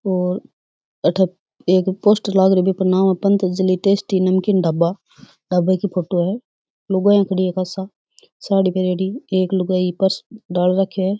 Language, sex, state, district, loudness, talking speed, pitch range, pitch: Rajasthani, female, Rajasthan, Churu, -18 LUFS, 165 wpm, 185-195 Hz, 190 Hz